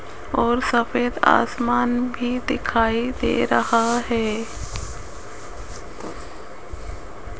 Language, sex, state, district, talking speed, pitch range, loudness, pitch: Hindi, female, Rajasthan, Jaipur, 65 wpm, 225-245 Hz, -21 LUFS, 235 Hz